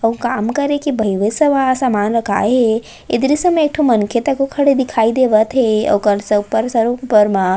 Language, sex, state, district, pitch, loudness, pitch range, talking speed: Chhattisgarhi, female, Chhattisgarh, Raigarh, 230 Hz, -15 LUFS, 215-270 Hz, 220 wpm